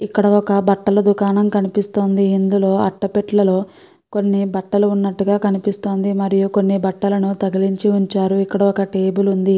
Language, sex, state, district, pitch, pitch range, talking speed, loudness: Telugu, female, Andhra Pradesh, Guntur, 200 Hz, 195-205 Hz, 130 wpm, -17 LUFS